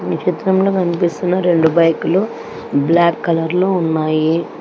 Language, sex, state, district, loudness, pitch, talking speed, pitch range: Telugu, female, Telangana, Hyderabad, -16 LUFS, 170 Hz, 115 wpm, 165-180 Hz